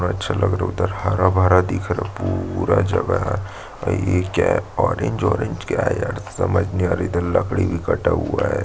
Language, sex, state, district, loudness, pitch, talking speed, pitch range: Hindi, male, Chhattisgarh, Jashpur, -20 LUFS, 95 Hz, 215 wpm, 90-100 Hz